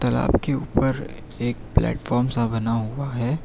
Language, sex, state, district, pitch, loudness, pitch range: Hindi, male, Gujarat, Valsad, 120 Hz, -23 LUFS, 115-135 Hz